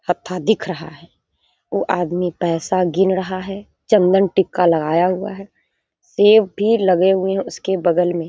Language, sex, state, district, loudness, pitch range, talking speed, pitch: Hindi, female, Bihar, Sitamarhi, -17 LUFS, 175-195 Hz, 165 wpm, 185 Hz